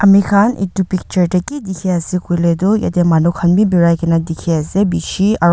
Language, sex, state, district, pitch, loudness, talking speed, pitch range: Nagamese, female, Nagaland, Dimapur, 180 Hz, -15 LUFS, 195 wpm, 170-195 Hz